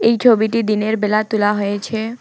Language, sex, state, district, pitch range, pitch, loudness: Bengali, female, West Bengal, Alipurduar, 210-230 Hz, 220 Hz, -17 LUFS